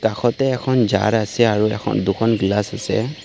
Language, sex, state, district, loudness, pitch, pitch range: Assamese, male, Assam, Kamrup Metropolitan, -19 LUFS, 110 Hz, 105-120 Hz